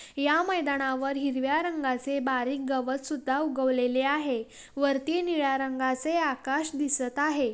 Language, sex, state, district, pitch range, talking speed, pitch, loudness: Marathi, female, Maharashtra, Pune, 260-295 Hz, 120 wpm, 275 Hz, -28 LUFS